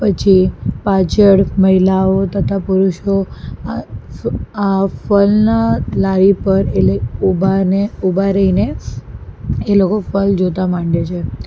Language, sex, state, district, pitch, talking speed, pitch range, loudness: Gujarati, female, Gujarat, Valsad, 195 Hz, 115 wpm, 185-195 Hz, -14 LUFS